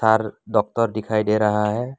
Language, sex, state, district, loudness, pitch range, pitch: Hindi, male, Assam, Kamrup Metropolitan, -21 LUFS, 105-115 Hz, 110 Hz